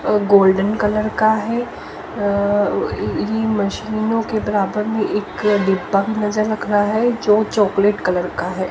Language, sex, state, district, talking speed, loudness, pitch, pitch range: Hindi, female, Haryana, Jhajjar, 140 wpm, -18 LUFS, 210 Hz, 200-215 Hz